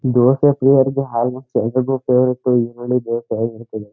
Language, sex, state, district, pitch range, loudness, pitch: Kannada, male, Karnataka, Chamarajanagar, 115-130 Hz, -17 LUFS, 125 Hz